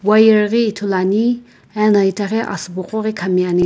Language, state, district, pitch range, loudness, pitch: Sumi, Nagaland, Kohima, 190-220 Hz, -16 LUFS, 210 Hz